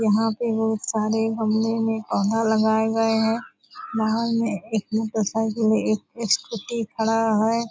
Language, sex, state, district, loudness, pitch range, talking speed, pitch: Hindi, female, Bihar, Purnia, -23 LUFS, 220-225 Hz, 150 wpm, 225 Hz